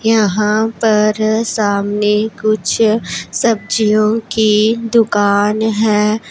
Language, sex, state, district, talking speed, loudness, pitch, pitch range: Hindi, female, Punjab, Pathankot, 75 wpm, -14 LUFS, 215 Hz, 210-220 Hz